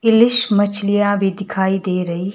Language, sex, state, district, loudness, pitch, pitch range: Hindi, male, Himachal Pradesh, Shimla, -16 LUFS, 200 Hz, 190-205 Hz